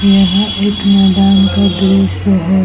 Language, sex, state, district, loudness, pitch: Hindi, female, Bihar, Vaishali, -11 LUFS, 195 Hz